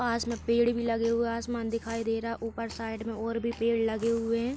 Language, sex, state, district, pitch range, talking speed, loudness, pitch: Hindi, female, Uttar Pradesh, Hamirpur, 230-235 Hz, 275 wpm, -30 LUFS, 230 Hz